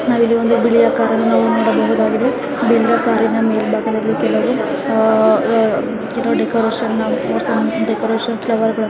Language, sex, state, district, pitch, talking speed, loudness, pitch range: Kannada, female, Karnataka, Chamarajanagar, 230 Hz, 115 wpm, -15 LUFS, 225-235 Hz